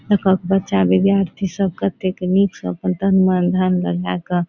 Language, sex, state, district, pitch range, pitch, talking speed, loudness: Maithili, female, Bihar, Saharsa, 155-195 Hz, 185 Hz, 185 wpm, -18 LUFS